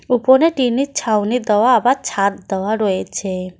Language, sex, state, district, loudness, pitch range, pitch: Bengali, female, West Bengal, Cooch Behar, -17 LUFS, 195-255 Hz, 220 Hz